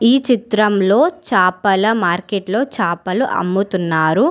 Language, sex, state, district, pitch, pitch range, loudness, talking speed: Telugu, female, Telangana, Hyderabad, 205 Hz, 185-245 Hz, -16 LUFS, 85 wpm